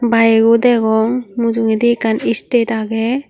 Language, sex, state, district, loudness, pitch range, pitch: Chakma, female, Tripura, Unakoti, -14 LUFS, 225-240 Hz, 230 Hz